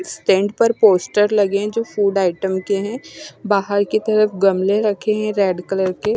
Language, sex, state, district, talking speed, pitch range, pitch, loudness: Hindi, female, Chandigarh, Chandigarh, 205 wpm, 195-215 Hz, 205 Hz, -17 LUFS